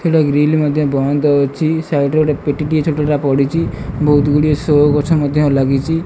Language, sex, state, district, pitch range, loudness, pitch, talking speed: Odia, female, Odisha, Malkangiri, 145-155 Hz, -14 LUFS, 150 Hz, 180 wpm